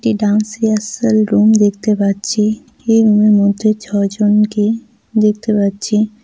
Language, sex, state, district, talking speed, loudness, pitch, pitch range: Bengali, female, West Bengal, Cooch Behar, 125 wpm, -14 LUFS, 215 Hz, 210-220 Hz